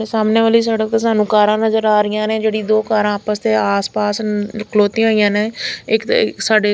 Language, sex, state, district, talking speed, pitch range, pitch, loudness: Punjabi, female, Punjab, Fazilka, 215 wpm, 210-220 Hz, 215 Hz, -16 LUFS